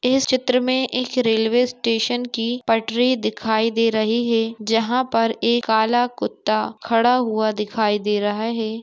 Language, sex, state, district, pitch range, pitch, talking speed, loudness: Hindi, female, Jharkhand, Sahebganj, 220-245 Hz, 230 Hz, 155 wpm, -20 LUFS